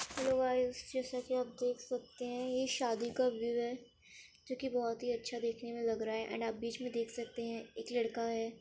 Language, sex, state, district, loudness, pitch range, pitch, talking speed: Hindi, female, Uttar Pradesh, Varanasi, -38 LUFS, 230-250 Hz, 240 Hz, 230 wpm